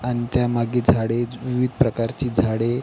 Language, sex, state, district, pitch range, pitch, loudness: Marathi, male, Maharashtra, Pune, 115-125 Hz, 120 Hz, -22 LUFS